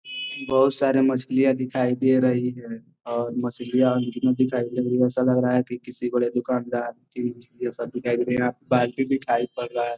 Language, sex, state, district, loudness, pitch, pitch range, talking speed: Hindi, male, Bihar, Gopalganj, -24 LUFS, 125 Hz, 120-130 Hz, 125 wpm